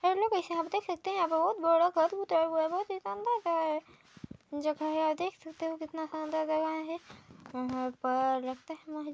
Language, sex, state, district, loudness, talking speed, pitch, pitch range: Hindi, female, Chhattisgarh, Balrampur, -32 LUFS, 145 wpm, 320 Hz, 310-345 Hz